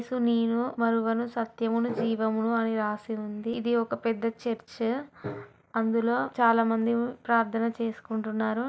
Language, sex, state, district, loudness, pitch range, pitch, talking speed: Telugu, female, Telangana, Karimnagar, -28 LUFS, 225-235 Hz, 230 Hz, 115 wpm